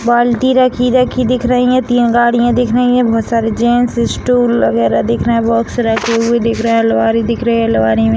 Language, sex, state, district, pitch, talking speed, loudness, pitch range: Hindi, female, Bihar, Sitamarhi, 235 Hz, 225 wpm, -12 LUFS, 230-245 Hz